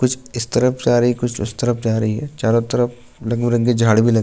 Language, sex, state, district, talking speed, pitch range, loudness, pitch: Hindi, male, Uttarakhand, Tehri Garhwal, 270 wpm, 115-120 Hz, -18 LUFS, 120 Hz